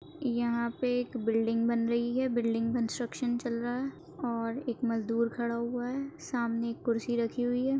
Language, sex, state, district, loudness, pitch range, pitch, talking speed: Hindi, female, Maharashtra, Aurangabad, -32 LUFS, 235-245 Hz, 235 Hz, 185 wpm